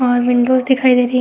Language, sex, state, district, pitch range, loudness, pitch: Hindi, female, Uttar Pradesh, Etah, 245-255 Hz, -14 LUFS, 250 Hz